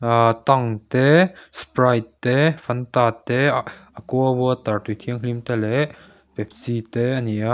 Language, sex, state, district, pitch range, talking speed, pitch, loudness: Mizo, male, Mizoram, Aizawl, 115-130 Hz, 150 wpm, 125 Hz, -20 LUFS